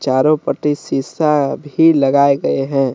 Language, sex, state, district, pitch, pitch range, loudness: Hindi, male, Jharkhand, Deoghar, 140 Hz, 135-150 Hz, -15 LUFS